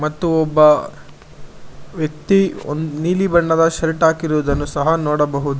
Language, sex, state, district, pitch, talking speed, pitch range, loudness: Kannada, male, Karnataka, Bangalore, 155 Hz, 105 wpm, 150-165 Hz, -17 LUFS